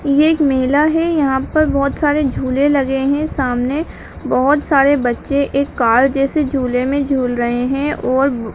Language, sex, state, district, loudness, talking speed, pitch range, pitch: Hindi, female, Uttarakhand, Uttarkashi, -16 LUFS, 175 wpm, 260-290 Hz, 275 Hz